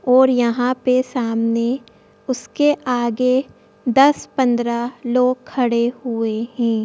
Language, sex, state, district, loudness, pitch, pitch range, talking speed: Hindi, female, Madhya Pradesh, Bhopal, -19 LUFS, 245 Hz, 235-255 Hz, 105 wpm